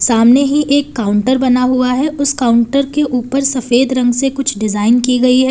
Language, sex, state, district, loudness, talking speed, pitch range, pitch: Hindi, female, Uttar Pradesh, Lalitpur, -13 LUFS, 205 wpm, 240-275 Hz, 255 Hz